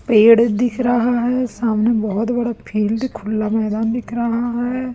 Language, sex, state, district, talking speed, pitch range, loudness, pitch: Hindi, female, Chhattisgarh, Raipur, 160 wpm, 220-240 Hz, -18 LUFS, 235 Hz